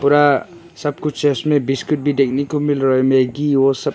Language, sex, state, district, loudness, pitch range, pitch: Hindi, male, Arunachal Pradesh, Longding, -17 LUFS, 135-150 Hz, 145 Hz